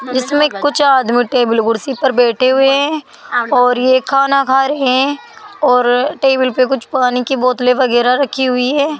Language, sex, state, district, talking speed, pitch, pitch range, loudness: Hindi, female, Rajasthan, Jaipur, 175 wpm, 260 Hz, 250-275 Hz, -13 LUFS